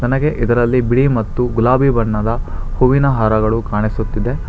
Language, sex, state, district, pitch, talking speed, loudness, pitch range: Kannada, male, Karnataka, Bangalore, 120 Hz, 120 wpm, -15 LUFS, 110-130 Hz